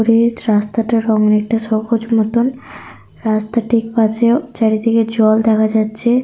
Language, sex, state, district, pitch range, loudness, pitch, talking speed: Bengali, female, Jharkhand, Sahebganj, 220-235 Hz, -15 LUFS, 225 Hz, 105 wpm